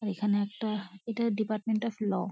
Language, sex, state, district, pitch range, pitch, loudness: Bengali, female, West Bengal, Kolkata, 205-220 Hz, 215 Hz, -31 LUFS